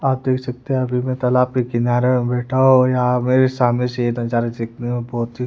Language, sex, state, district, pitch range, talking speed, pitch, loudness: Hindi, female, Bihar, West Champaran, 120-130 Hz, 230 wpm, 125 Hz, -18 LUFS